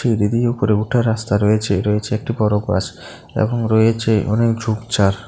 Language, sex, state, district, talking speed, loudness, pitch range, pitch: Bengali, male, Tripura, South Tripura, 160 wpm, -18 LUFS, 105-115 Hz, 110 Hz